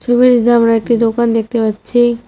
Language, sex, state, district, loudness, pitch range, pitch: Bengali, female, West Bengal, Cooch Behar, -13 LUFS, 225-240 Hz, 235 Hz